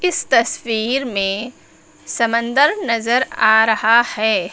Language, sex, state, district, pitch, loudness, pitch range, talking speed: Hindi, female, Uttar Pradesh, Lucknow, 230 Hz, -16 LUFS, 220-260 Hz, 105 wpm